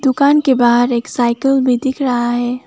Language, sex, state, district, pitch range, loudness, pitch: Hindi, female, West Bengal, Alipurduar, 240-270 Hz, -14 LUFS, 250 Hz